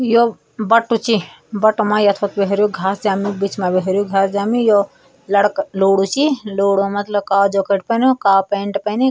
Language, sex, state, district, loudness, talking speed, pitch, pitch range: Garhwali, male, Uttarakhand, Tehri Garhwal, -16 LUFS, 185 wpm, 200 Hz, 195-215 Hz